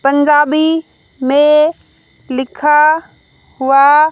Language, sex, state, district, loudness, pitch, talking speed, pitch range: Hindi, female, Haryana, Rohtak, -12 LUFS, 295 Hz, 75 wpm, 275-305 Hz